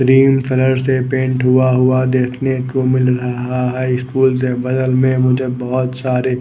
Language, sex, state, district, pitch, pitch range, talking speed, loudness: Hindi, male, Odisha, Nuapada, 130 Hz, 125-130 Hz, 170 wpm, -15 LUFS